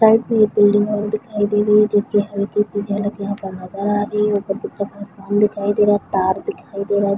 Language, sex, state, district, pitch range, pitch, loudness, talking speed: Hindi, female, Chhattisgarh, Bilaspur, 200-210 Hz, 205 Hz, -18 LUFS, 250 wpm